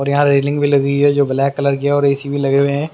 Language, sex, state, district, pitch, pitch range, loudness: Hindi, male, Haryana, Jhajjar, 140 Hz, 140-145 Hz, -15 LUFS